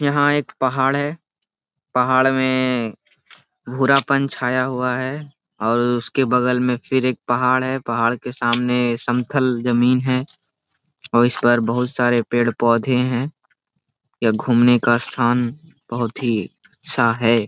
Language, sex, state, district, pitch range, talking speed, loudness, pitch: Hindi, male, Jharkhand, Sahebganj, 120-130 Hz, 135 wpm, -19 LUFS, 125 Hz